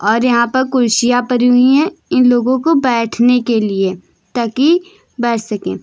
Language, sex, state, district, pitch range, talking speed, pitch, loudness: Hindi, female, Uttar Pradesh, Lucknow, 230-260 Hz, 165 wpm, 245 Hz, -14 LUFS